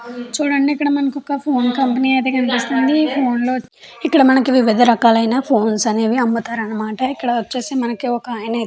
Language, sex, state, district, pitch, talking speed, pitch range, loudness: Telugu, female, Andhra Pradesh, Chittoor, 250 Hz, 175 wpm, 235-270 Hz, -16 LUFS